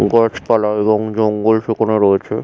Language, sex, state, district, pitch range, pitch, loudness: Bengali, male, West Bengal, Jhargram, 105-110 Hz, 110 Hz, -15 LUFS